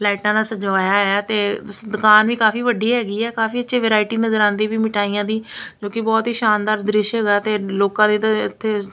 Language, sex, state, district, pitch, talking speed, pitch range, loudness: Punjabi, female, Punjab, Kapurthala, 215 Hz, 210 wpm, 205-225 Hz, -18 LUFS